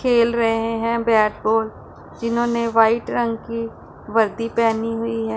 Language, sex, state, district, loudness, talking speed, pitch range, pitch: Hindi, female, Punjab, Pathankot, -20 LUFS, 145 wpm, 225-230 Hz, 230 Hz